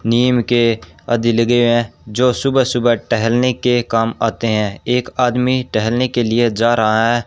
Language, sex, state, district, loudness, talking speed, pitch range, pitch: Hindi, male, Rajasthan, Bikaner, -16 LUFS, 180 wpm, 115-125 Hz, 120 Hz